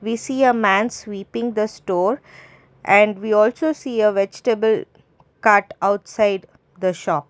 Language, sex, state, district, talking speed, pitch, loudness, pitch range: English, female, Karnataka, Bangalore, 140 wpm, 210 Hz, -19 LUFS, 195-230 Hz